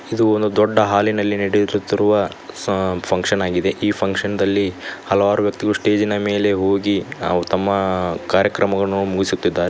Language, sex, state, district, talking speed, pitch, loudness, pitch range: Kannada, male, Karnataka, Koppal, 130 wpm, 100 Hz, -18 LUFS, 95-105 Hz